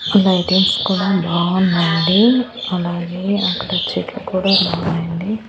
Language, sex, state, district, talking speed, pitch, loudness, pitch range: Telugu, female, Andhra Pradesh, Annamaya, 85 wpm, 185 Hz, -16 LUFS, 175-195 Hz